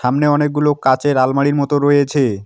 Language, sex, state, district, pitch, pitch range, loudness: Bengali, male, West Bengal, Alipurduar, 145 Hz, 130-145 Hz, -15 LUFS